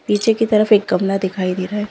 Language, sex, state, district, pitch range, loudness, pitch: Hindi, female, Andhra Pradesh, Anantapur, 190-215 Hz, -17 LUFS, 205 Hz